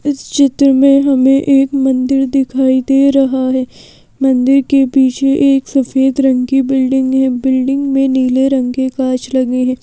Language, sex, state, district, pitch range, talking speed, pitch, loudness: Hindi, female, Madhya Pradesh, Bhopal, 260-275 Hz, 155 wpm, 270 Hz, -12 LUFS